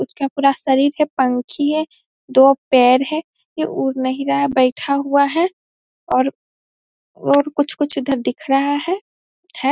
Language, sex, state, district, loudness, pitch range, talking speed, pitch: Hindi, female, Bihar, Darbhanga, -17 LUFS, 265-300 Hz, 155 wpm, 280 Hz